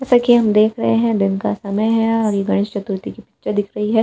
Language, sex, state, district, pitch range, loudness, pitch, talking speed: Hindi, female, Delhi, New Delhi, 200-225 Hz, -17 LUFS, 215 Hz, 280 wpm